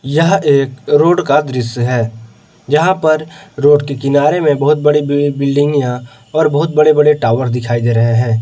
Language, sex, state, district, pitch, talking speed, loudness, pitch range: Hindi, male, Jharkhand, Palamu, 145 Hz, 185 wpm, -13 LUFS, 125-155 Hz